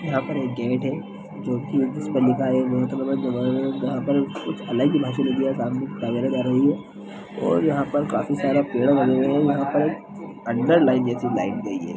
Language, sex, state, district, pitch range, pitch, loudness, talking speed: Hindi, male, Bihar, Lakhisarai, 125-140 Hz, 135 Hz, -22 LUFS, 170 wpm